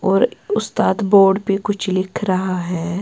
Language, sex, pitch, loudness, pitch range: Urdu, female, 195 Hz, -18 LUFS, 185-205 Hz